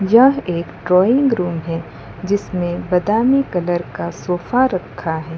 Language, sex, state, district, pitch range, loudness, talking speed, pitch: Hindi, female, Gujarat, Valsad, 165-220 Hz, -18 LUFS, 135 wpm, 180 Hz